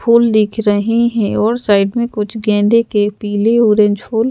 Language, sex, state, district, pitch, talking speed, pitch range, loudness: Hindi, female, Madhya Pradesh, Bhopal, 220 Hz, 180 wpm, 205-230 Hz, -14 LUFS